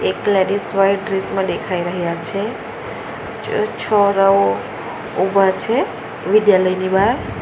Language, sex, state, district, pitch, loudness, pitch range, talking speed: Gujarati, female, Gujarat, Valsad, 195 Hz, -18 LUFS, 185-200 Hz, 115 wpm